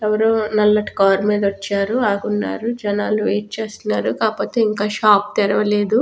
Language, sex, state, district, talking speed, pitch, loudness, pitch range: Telugu, female, Telangana, Nalgonda, 140 wpm, 210 Hz, -18 LUFS, 200-215 Hz